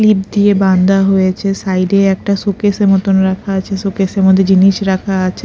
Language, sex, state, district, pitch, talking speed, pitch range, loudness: Bengali, female, Odisha, Khordha, 195 Hz, 200 wpm, 190-200 Hz, -12 LUFS